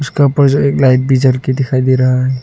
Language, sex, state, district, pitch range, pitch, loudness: Hindi, male, Arunachal Pradesh, Lower Dibang Valley, 130-140 Hz, 130 Hz, -12 LUFS